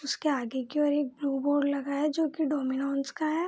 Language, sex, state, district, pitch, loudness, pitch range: Hindi, female, Bihar, Purnia, 285 Hz, -29 LUFS, 275-300 Hz